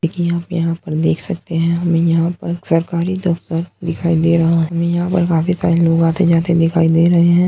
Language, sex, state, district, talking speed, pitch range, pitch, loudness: Hindi, male, Uttar Pradesh, Muzaffarnagar, 225 wpm, 165-175 Hz, 170 Hz, -16 LUFS